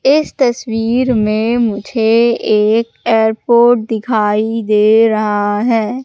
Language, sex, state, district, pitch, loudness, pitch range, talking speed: Hindi, female, Madhya Pradesh, Katni, 225 Hz, -13 LUFS, 215-235 Hz, 100 wpm